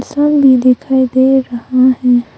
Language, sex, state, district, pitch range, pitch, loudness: Hindi, female, Arunachal Pradesh, Longding, 250-265 Hz, 260 Hz, -11 LUFS